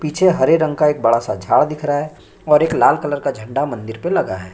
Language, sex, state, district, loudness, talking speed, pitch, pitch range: Hindi, male, Chhattisgarh, Sukma, -17 LUFS, 280 wpm, 150 Hz, 120-155 Hz